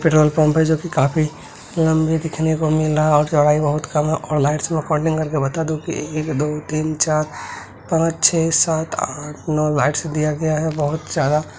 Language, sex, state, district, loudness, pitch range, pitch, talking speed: Hindi, male, Bihar, Begusarai, -19 LUFS, 150-160 Hz, 155 Hz, 205 wpm